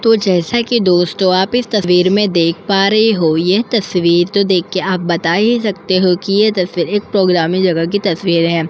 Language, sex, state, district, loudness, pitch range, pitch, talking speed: Hindi, female, Delhi, New Delhi, -13 LUFS, 175-205 Hz, 185 Hz, 215 wpm